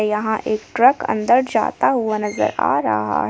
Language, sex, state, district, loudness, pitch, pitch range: Hindi, female, Jharkhand, Palamu, -18 LUFS, 215 Hz, 160-240 Hz